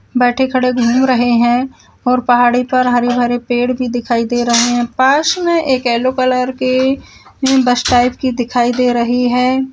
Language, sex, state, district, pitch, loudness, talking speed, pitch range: Hindi, female, Uttarakhand, Uttarkashi, 250 Hz, -14 LUFS, 180 wpm, 245-255 Hz